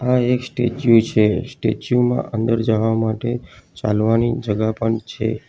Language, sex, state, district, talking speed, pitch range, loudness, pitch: Gujarati, male, Gujarat, Valsad, 140 wpm, 110-125 Hz, -19 LUFS, 115 Hz